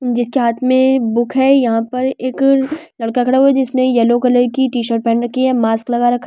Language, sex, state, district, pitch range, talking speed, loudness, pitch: Hindi, female, Delhi, New Delhi, 240-260 Hz, 230 wpm, -14 LUFS, 250 Hz